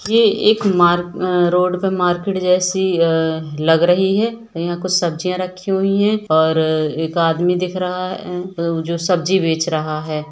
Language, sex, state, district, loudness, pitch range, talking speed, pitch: Hindi, male, Bihar, Sitamarhi, -17 LUFS, 165-185 Hz, 175 wpm, 180 Hz